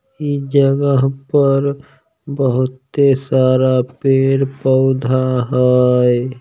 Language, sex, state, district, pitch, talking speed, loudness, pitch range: Maithili, male, Bihar, Samastipur, 135 Hz, 65 wpm, -15 LUFS, 130-140 Hz